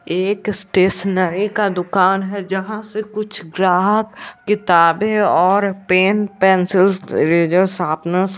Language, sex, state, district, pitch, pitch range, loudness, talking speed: Hindi, male, Bihar, West Champaran, 190 Hz, 185-210 Hz, -16 LUFS, 115 wpm